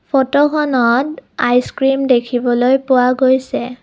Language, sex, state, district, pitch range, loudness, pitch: Assamese, female, Assam, Kamrup Metropolitan, 245-270 Hz, -14 LUFS, 260 Hz